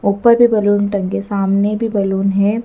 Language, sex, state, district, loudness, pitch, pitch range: Hindi, female, Madhya Pradesh, Dhar, -15 LUFS, 205 Hz, 200-215 Hz